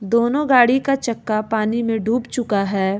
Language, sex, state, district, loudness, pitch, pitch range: Hindi, female, Jharkhand, Ranchi, -19 LUFS, 230 Hz, 215-245 Hz